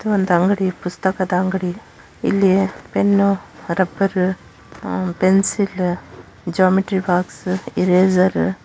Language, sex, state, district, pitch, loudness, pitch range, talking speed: Kannada, female, Karnataka, Shimoga, 185 Hz, -18 LUFS, 180-195 Hz, 90 wpm